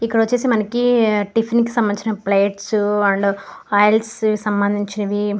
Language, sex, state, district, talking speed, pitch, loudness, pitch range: Telugu, female, Andhra Pradesh, Guntur, 135 wpm, 210 Hz, -18 LUFS, 205-225 Hz